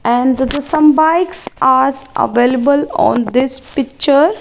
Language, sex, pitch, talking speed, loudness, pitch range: English, female, 270 Hz, 120 wpm, -13 LUFS, 260-300 Hz